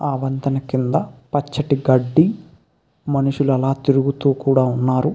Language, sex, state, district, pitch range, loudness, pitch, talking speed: Telugu, male, Andhra Pradesh, Krishna, 130-145 Hz, -19 LUFS, 135 Hz, 115 wpm